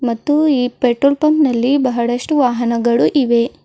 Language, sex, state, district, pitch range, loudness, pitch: Kannada, female, Karnataka, Bidar, 240-280 Hz, -15 LUFS, 250 Hz